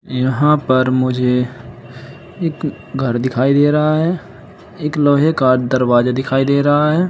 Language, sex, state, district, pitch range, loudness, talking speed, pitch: Hindi, male, Uttar Pradesh, Saharanpur, 125-150 Hz, -15 LUFS, 145 wpm, 135 Hz